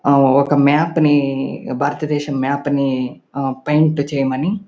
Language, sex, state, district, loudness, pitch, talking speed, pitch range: Telugu, male, Andhra Pradesh, Anantapur, -17 LUFS, 140 Hz, 130 wpm, 135-150 Hz